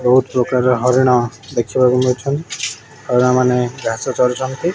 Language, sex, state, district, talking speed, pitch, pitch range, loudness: Odia, male, Odisha, Khordha, 115 wpm, 125 Hz, 125-130 Hz, -16 LUFS